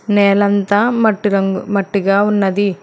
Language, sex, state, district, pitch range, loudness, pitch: Telugu, female, Telangana, Hyderabad, 195-205 Hz, -14 LUFS, 200 Hz